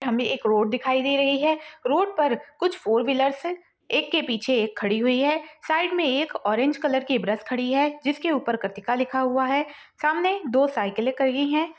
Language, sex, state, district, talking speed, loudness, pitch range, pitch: Hindi, female, Bihar, Saharsa, 205 wpm, -24 LUFS, 250-305 Hz, 275 Hz